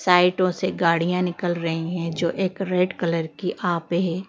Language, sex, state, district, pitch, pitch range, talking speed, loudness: Hindi, female, Madhya Pradesh, Bhopal, 175 Hz, 170-185 Hz, 180 wpm, -23 LUFS